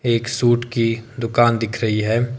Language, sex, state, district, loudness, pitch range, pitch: Hindi, male, Himachal Pradesh, Shimla, -19 LUFS, 115-120 Hz, 115 Hz